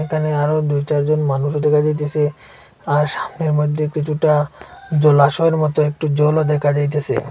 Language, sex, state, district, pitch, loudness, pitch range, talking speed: Bengali, male, Assam, Hailakandi, 150 Hz, -17 LUFS, 145-155 Hz, 140 wpm